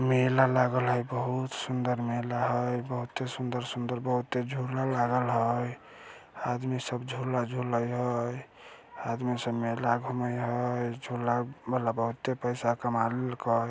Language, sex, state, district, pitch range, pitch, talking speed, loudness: Maithili, male, Bihar, Samastipur, 120-125 Hz, 125 Hz, 130 wpm, -30 LUFS